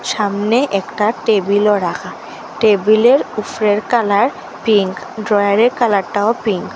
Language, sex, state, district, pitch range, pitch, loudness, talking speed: Bengali, female, Assam, Hailakandi, 205-225 Hz, 210 Hz, -15 LUFS, 105 wpm